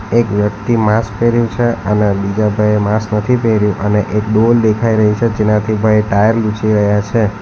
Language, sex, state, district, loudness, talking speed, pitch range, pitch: Gujarati, male, Gujarat, Valsad, -13 LUFS, 185 wpm, 105-115 Hz, 105 Hz